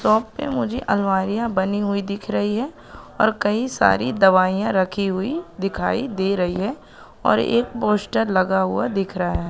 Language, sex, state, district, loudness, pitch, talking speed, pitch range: Hindi, female, Madhya Pradesh, Katni, -21 LUFS, 205 Hz, 170 wpm, 190-230 Hz